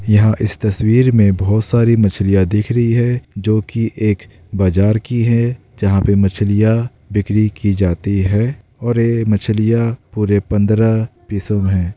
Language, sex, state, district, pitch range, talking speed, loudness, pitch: Hindi, male, Bihar, Darbhanga, 100-115 Hz, 155 wpm, -15 LUFS, 110 Hz